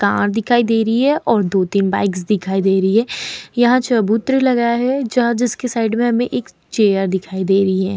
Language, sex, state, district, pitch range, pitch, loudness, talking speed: Hindi, female, Bihar, Vaishali, 195-240 Hz, 225 Hz, -16 LUFS, 205 wpm